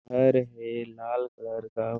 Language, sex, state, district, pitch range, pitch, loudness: Hindi, male, Chhattisgarh, Sarguja, 115-125 Hz, 115 Hz, -29 LUFS